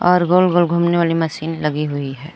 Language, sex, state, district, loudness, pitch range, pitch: Hindi, female, Jharkhand, Palamu, -17 LUFS, 150-175 Hz, 165 Hz